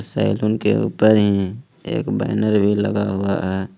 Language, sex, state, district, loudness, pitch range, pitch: Hindi, male, Jharkhand, Ranchi, -19 LUFS, 100-110 Hz, 105 Hz